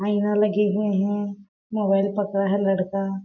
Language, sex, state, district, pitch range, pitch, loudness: Hindi, female, Chhattisgarh, Balrampur, 195-205 Hz, 200 Hz, -23 LUFS